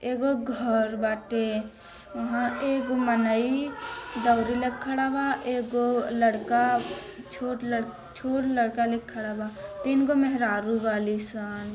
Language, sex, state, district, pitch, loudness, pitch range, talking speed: Bhojpuri, female, Bihar, Saran, 240 Hz, -27 LUFS, 220-260 Hz, 110 wpm